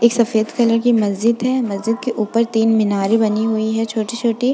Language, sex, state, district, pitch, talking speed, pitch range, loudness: Hindi, female, Uttar Pradesh, Budaun, 225 Hz, 210 wpm, 220-235 Hz, -17 LUFS